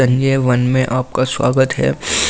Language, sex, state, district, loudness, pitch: Hindi, male, Delhi, New Delhi, -16 LUFS, 130 Hz